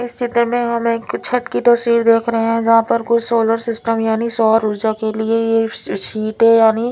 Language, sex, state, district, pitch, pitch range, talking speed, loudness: Hindi, female, Punjab, Fazilka, 230 Hz, 225-235 Hz, 210 wpm, -16 LUFS